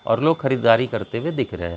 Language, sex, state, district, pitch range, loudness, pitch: Hindi, male, Bihar, Gaya, 105-135 Hz, -20 LUFS, 115 Hz